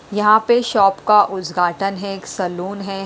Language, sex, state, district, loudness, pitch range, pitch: Hindi, female, Haryana, Rohtak, -17 LUFS, 190-210 Hz, 195 Hz